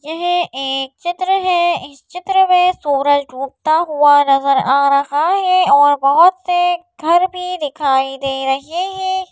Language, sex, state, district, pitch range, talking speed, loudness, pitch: Hindi, female, Madhya Pradesh, Bhopal, 280-360 Hz, 150 wpm, -15 LUFS, 320 Hz